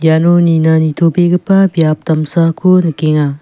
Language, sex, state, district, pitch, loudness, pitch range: Garo, female, Meghalaya, West Garo Hills, 165 Hz, -11 LUFS, 160-175 Hz